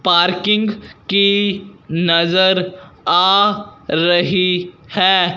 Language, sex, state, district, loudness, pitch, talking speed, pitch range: Hindi, male, Punjab, Fazilka, -15 LUFS, 185 Hz, 65 wpm, 175-200 Hz